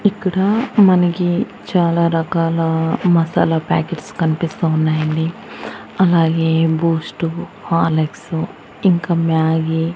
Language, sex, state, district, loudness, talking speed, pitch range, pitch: Telugu, female, Andhra Pradesh, Annamaya, -17 LUFS, 85 wpm, 160-180 Hz, 165 Hz